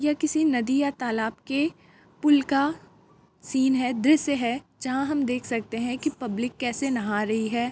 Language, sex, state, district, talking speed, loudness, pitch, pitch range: Hindi, female, Uttar Pradesh, Varanasi, 170 wpm, -25 LUFS, 260 Hz, 240-285 Hz